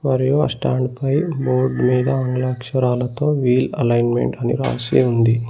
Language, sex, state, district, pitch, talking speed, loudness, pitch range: Telugu, male, Telangana, Mahabubabad, 130 Hz, 140 wpm, -19 LUFS, 125-135 Hz